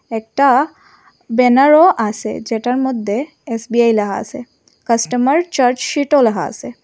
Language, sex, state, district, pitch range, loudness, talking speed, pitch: Bengali, female, Assam, Hailakandi, 230-285 Hz, -15 LUFS, 115 wpm, 250 Hz